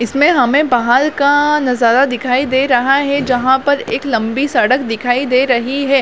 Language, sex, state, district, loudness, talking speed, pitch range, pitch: Hindi, female, Chhattisgarh, Bilaspur, -13 LUFS, 180 wpm, 245-280 Hz, 265 Hz